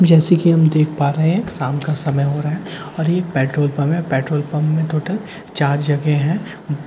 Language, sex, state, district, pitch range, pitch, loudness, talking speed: Hindi, male, Bihar, Katihar, 145-170 Hz, 155 Hz, -18 LUFS, 245 wpm